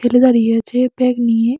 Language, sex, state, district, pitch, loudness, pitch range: Bengali, female, Tripura, West Tripura, 245 Hz, -15 LUFS, 230-250 Hz